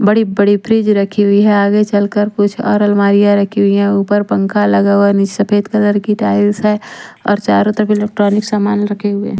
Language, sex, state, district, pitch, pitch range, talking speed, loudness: Hindi, female, Haryana, Rohtak, 205 Hz, 200-210 Hz, 200 wpm, -13 LUFS